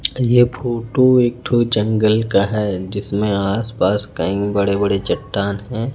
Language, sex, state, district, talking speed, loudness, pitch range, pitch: Hindi, male, Chhattisgarh, Raipur, 140 wpm, -17 LUFS, 100-120 Hz, 110 Hz